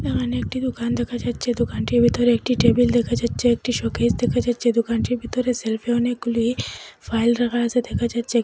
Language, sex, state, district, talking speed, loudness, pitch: Bengali, female, Assam, Hailakandi, 170 wpm, -21 LUFS, 235 Hz